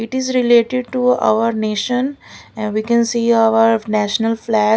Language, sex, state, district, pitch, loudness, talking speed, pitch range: English, female, Maharashtra, Gondia, 225 Hz, -16 LUFS, 150 wpm, 220-250 Hz